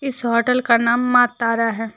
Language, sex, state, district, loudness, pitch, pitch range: Hindi, female, Jharkhand, Deoghar, -17 LUFS, 235 Hz, 230-250 Hz